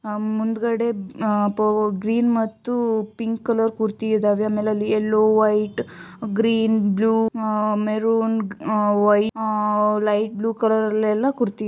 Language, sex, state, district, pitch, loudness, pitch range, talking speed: Kannada, female, Karnataka, Shimoga, 215 Hz, -21 LUFS, 210-225 Hz, 140 wpm